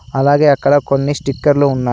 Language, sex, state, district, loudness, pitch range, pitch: Telugu, male, Telangana, Adilabad, -13 LUFS, 135-145 Hz, 140 Hz